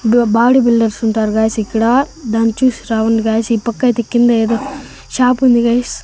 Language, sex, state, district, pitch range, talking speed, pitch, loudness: Telugu, male, Andhra Pradesh, Annamaya, 225-250 Hz, 170 wpm, 235 Hz, -14 LUFS